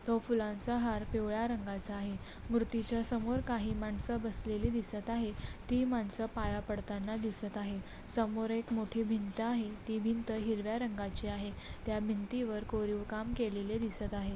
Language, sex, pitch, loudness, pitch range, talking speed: Marathi, female, 220 Hz, -37 LUFS, 210-230 Hz, 160 wpm